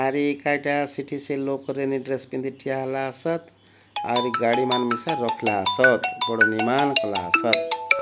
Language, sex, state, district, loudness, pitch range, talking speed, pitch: Odia, male, Odisha, Malkangiri, -20 LUFS, 130-150 Hz, 165 wpm, 135 Hz